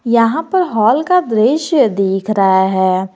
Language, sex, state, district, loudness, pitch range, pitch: Hindi, female, Jharkhand, Garhwa, -13 LUFS, 190-300 Hz, 220 Hz